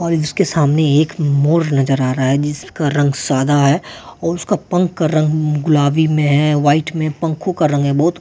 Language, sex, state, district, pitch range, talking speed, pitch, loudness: Hindi, male, Delhi, New Delhi, 145-165 Hz, 205 wpm, 150 Hz, -15 LUFS